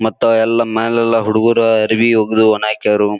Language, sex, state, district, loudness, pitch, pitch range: Kannada, male, Karnataka, Bijapur, -13 LUFS, 110 Hz, 110-115 Hz